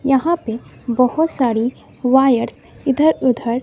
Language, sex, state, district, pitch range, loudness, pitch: Hindi, female, Bihar, West Champaran, 240-275 Hz, -17 LUFS, 255 Hz